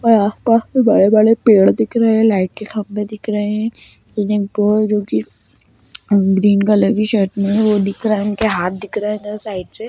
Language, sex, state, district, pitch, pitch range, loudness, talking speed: Hindi, female, Bihar, Gaya, 210 Hz, 200-215 Hz, -15 LUFS, 200 wpm